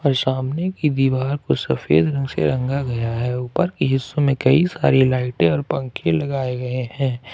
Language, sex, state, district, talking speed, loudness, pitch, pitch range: Hindi, male, Jharkhand, Ranchi, 190 wpm, -20 LUFS, 130 Hz, 125-140 Hz